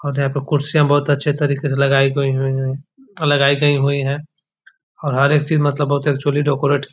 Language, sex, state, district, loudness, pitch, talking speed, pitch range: Hindi, male, Bihar, Sitamarhi, -17 LUFS, 145 Hz, 210 wpm, 140-145 Hz